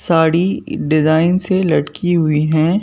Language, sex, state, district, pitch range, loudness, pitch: Hindi, male, Madhya Pradesh, Bhopal, 155-175 Hz, -15 LUFS, 165 Hz